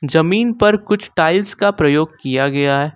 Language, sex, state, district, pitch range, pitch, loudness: Hindi, male, Jharkhand, Ranchi, 145-205 Hz, 160 Hz, -15 LUFS